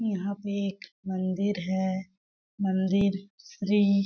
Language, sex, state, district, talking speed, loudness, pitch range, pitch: Hindi, female, Chhattisgarh, Balrampur, 120 wpm, -29 LUFS, 190-200 Hz, 195 Hz